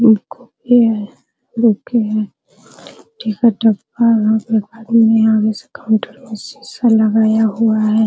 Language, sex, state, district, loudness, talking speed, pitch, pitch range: Hindi, female, Bihar, Araria, -15 LUFS, 90 wpm, 220 Hz, 215-230 Hz